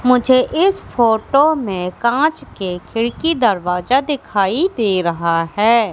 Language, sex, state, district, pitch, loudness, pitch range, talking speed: Hindi, female, Madhya Pradesh, Katni, 235 Hz, -16 LUFS, 190-275 Hz, 120 wpm